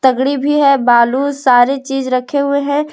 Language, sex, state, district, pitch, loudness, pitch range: Hindi, female, Jharkhand, Palamu, 270 Hz, -13 LUFS, 255-280 Hz